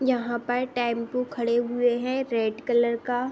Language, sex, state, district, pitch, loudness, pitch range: Hindi, female, Bihar, Saharsa, 240 Hz, -26 LUFS, 235-250 Hz